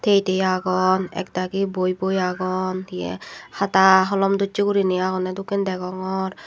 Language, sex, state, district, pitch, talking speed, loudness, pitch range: Chakma, female, Tripura, Dhalai, 190 Hz, 140 wpm, -21 LUFS, 185-195 Hz